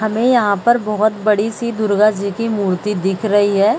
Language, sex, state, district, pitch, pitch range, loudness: Hindi, female, Bihar, Gaya, 210 Hz, 200-220 Hz, -16 LUFS